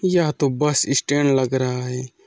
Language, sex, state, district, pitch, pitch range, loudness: Hindi, male, Chhattisgarh, Korba, 140 Hz, 130-150 Hz, -20 LUFS